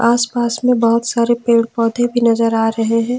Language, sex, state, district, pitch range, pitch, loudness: Hindi, female, Jharkhand, Ranchi, 230-240 Hz, 235 Hz, -15 LUFS